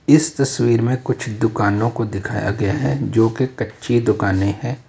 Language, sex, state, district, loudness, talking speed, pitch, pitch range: Hindi, male, Uttar Pradesh, Lalitpur, -19 LUFS, 170 wpm, 115 Hz, 105-130 Hz